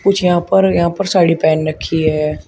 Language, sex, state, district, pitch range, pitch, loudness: Hindi, male, Uttar Pradesh, Shamli, 155-190 Hz, 170 Hz, -14 LUFS